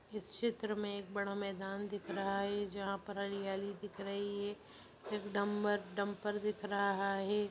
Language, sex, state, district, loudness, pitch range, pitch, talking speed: Hindi, female, Bihar, Vaishali, -39 LUFS, 200-205 Hz, 200 Hz, 160 wpm